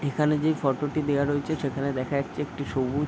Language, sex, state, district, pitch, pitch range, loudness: Bengali, male, West Bengal, Paschim Medinipur, 140 Hz, 140-150 Hz, -27 LUFS